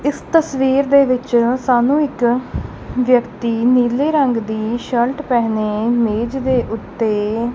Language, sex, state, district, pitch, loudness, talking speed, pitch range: Punjabi, female, Punjab, Kapurthala, 245 Hz, -17 LUFS, 120 wpm, 230-265 Hz